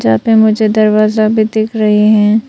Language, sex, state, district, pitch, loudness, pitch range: Hindi, female, Arunachal Pradesh, Papum Pare, 215 Hz, -10 LUFS, 215-220 Hz